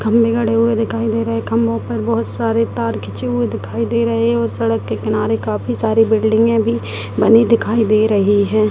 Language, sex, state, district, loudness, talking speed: Hindi, female, Bihar, Purnia, -16 LUFS, 205 wpm